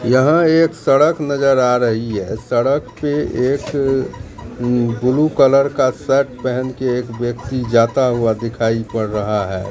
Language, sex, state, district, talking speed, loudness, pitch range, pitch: Hindi, male, Bihar, Katihar, 150 wpm, -16 LUFS, 115-140 Hz, 125 Hz